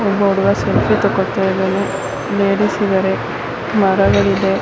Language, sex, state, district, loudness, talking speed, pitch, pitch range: Kannada, female, Karnataka, Belgaum, -16 LUFS, 90 wpm, 195 Hz, 190-200 Hz